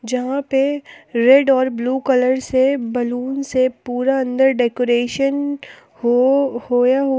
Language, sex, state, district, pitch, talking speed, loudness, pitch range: Hindi, female, Jharkhand, Palamu, 260 Hz, 125 wpm, -17 LUFS, 245-270 Hz